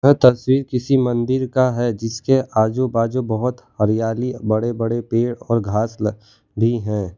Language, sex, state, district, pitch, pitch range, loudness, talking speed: Hindi, male, Gujarat, Valsad, 115 Hz, 110-125 Hz, -19 LUFS, 160 wpm